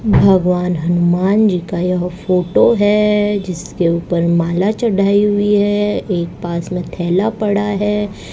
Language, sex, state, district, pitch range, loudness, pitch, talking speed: Hindi, female, Rajasthan, Bikaner, 175-205 Hz, -15 LUFS, 185 Hz, 135 wpm